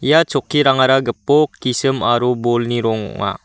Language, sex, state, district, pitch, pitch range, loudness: Garo, male, Meghalaya, West Garo Hills, 130 Hz, 120-140 Hz, -16 LUFS